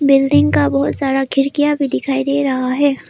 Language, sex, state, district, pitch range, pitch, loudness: Hindi, female, Arunachal Pradesh, Lower Dibang Valley, 255-280 Hz, 270 Hz, -15 LUFS